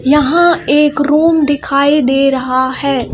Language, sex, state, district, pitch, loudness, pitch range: Hindi, female, Madhya Pradesh, Bhopal, 285 Hz, -12 LUFS, 270-300 Hz